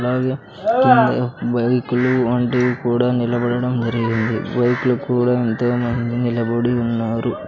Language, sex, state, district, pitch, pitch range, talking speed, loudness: Telugu, male, Andhra Pradesh, Sri Satya Sai, 120 Hz, 120-125 Hz, 95 wpm, -18 LUFS